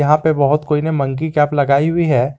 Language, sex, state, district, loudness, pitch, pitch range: Hindi, male, Jharkhand, Garhwa, -16 LUFS, 150 Hz, 140-155 Hz